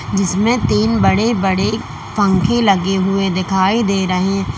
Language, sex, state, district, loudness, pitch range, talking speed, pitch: Hindi, female, Uttar Pradesh, Lalitpur, -15 LUFS, 190-210 Hz, 130 wpm, 195 Hz